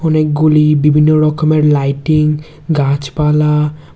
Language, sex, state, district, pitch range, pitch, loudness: Bengali, male, Tripura, West Tripura, 150-155 Hz, 150 Hz, -12 LUFS